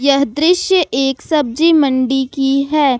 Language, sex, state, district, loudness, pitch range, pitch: Hindi, female, Jharkhand, Ranchi, -14 LUFS, 270-310 Hz, 280 Hz